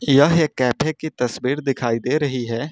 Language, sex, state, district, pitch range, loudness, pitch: Hindi, male, Uttar Pradesh, Lucknow, 125-150 Hz, -20 LUFS, 135 Hz